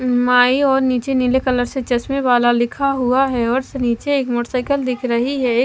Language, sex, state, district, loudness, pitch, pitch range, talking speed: Hindi, female, Maharashtra, Mumbai Suburban, -17 LUFS, 255 Hz, 245-265 Hz, 235 wpm